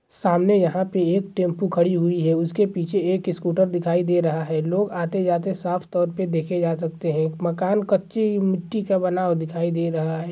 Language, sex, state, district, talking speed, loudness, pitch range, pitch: Hindi, male, Bihar, Gaya, 205 wpm, -22 LUFS, 170-190 Hz, 175 Hz